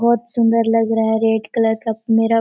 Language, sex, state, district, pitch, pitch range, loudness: Hindi, female, Chhattisgarh, Korba, 225 Hz, 225-230 Hz, -17 LUFS